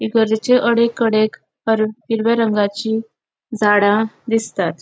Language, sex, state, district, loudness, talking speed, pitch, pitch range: Konkani, female, Goa, North and South Goa, -17 LUFS, 75 wpm, 220 Hz, 215-230 Hz